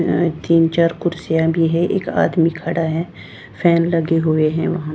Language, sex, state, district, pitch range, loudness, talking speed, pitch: Hindi, female, Bihar, Patna, 160-170 Hz, -17 LUFS, 180 wpm, 165 Hz